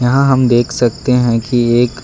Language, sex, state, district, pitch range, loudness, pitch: Hindi, male, Karnataka, Bangalore, 120-130 Hz, -13 LUFS, 125 Hz